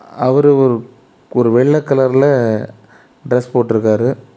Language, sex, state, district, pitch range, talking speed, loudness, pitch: Tamil, male, Tamil Nadu, Kanyakumari, 115-135 Hz, 95 wpm, -14 LUFS, 125 Hz